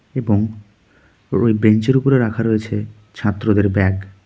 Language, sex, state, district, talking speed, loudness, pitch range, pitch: Bengali, male, West Bengal, Darjeeling, 125 wpm, -17 LUFS, 100-110 Hz, 105 Hz